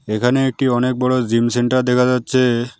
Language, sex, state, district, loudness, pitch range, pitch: Bengali, male, West Bengal, Alipurduar, -17 LUFS, 120-130 Hz, 125 Hz